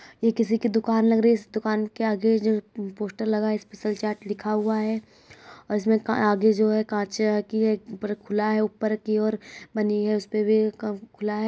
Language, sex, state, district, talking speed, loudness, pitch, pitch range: Hindi, female, Uttar Pradesh, Hamirpur, 210 wpm, -25 LUFS, 215 Hz, 210-220 Hz